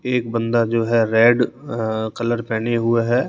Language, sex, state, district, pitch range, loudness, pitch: Hindi, male, Rajasthan, Jaipur, 115-120 Hz, -19 LUFS, 115 Hz